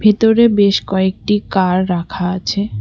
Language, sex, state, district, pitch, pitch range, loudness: Bengali, female, West Bengal, Cooch Behar, 195 Hz, 185-210 Hz, -15 LUFS